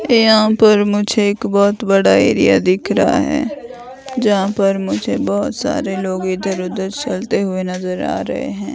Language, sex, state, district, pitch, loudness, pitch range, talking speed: Hindi, female, Himachal Pradesh, Shimla, 200 Hz, -15 LUFS, 190-225 Hz, 165 wpm